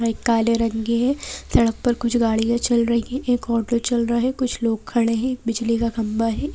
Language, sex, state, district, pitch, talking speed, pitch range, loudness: Hindi, female, Madhya Pradesh, Bhopal, 235 Hz, 230 wpm, 230-240 Hz, -21 LUFS